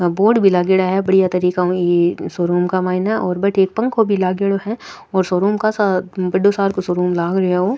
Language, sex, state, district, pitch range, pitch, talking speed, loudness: Rajasthani, female, Rajasthan, Nagaur, 180-200 Hz, 190 Hz, 225 wpm, -17 LUFS